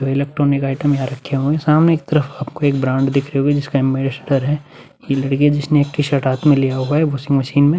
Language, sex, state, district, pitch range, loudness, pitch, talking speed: Hindi, male, Uttar Pradesh, Budaun, 135-145 Hz, -17 LUFS, 140 Hz, 245 wpm